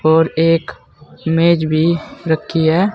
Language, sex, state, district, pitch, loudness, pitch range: Hindi, male, Uttar Pradesh, Saharanpur, 165 Hz, -15 LUFS, 160-170 Hz